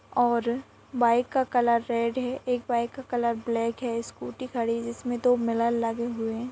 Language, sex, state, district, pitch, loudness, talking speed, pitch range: Hindi, female, Chhattisgarh, Rajnandgaon, 235 Hz, -27 LUFS, 195 wpm, 235-250 Hz